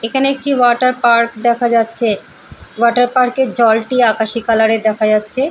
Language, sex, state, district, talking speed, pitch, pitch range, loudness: Bengali, female, West Bengal, Purulia, 165 wpm, 235 Hz, 225-250 Hz, -13 LUFS